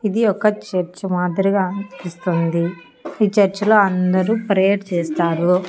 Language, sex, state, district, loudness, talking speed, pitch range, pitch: Telugu, female, Andhra Pradesh, Annamaya, -18 LUFS, 115 wpm, 180-205 Hz, 190 Hz